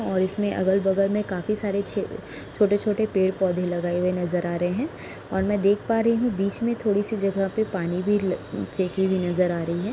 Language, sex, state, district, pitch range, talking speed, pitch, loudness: Hindi, female, Uttar Pradesh, Etah, 185-210 Hz, 225 wpm, 195 Hz, -24 LUFS